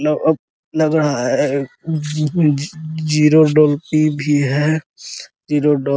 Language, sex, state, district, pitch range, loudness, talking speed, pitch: Hindi, male, Bihar, Araria, 145-155 Hz, -17 LUFS, 130 wpm, 150 Hz